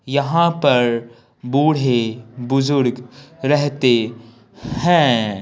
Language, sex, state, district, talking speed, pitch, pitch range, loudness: Hindi, male, Bihar, Patna, 65 wpm, 125 Hz, 120-145 Hz, -17 LUFS